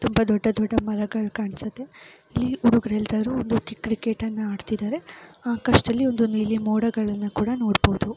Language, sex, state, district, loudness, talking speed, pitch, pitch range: Kannada, female, Karnataka, Chamarajanagar, -24 LUFS, 125 wpm, 220 Hz, 215-235 Hz